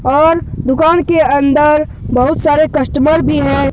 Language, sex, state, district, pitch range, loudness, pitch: Hindi, male, Jharkhand, Deoghar, 280-315 Hz, -12 LUFS, 300 Hz